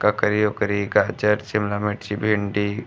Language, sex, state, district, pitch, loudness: Bhojpuri, male, Uttar Pradesh, Gorakhpur, 105 Hz, -22 LUFS